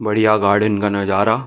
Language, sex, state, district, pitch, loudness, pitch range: Hindi, male, Chhattisgarh, Bilaspur, 105 Hz, -16 LUFS, 100-110 Hz